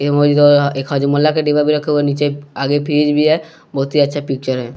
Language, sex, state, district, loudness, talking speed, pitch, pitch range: Hindi, male, Bihar, West Champaran, -15 LUFS, 225 wpm, 145 Hz, 140-150 Hz